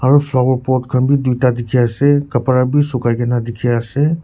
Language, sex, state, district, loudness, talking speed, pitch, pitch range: Nagamese, male, Nagaland, Kohima, -15 LUFS, 225 wpm, 130 Hz, 120-140 Hz